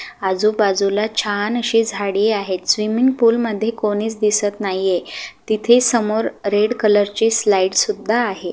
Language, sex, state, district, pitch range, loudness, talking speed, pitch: Marathi, female, Maharashtra, Solapur, 205-230 Hz, -17 LUFS, 135 wpm, 215 Hz